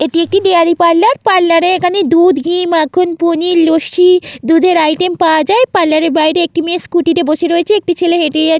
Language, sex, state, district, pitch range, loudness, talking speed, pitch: Bengali, female, West Bengal, Jalpaiguri, 330-360 Hz, -11 LUFS, 195 wpm, 340 Hz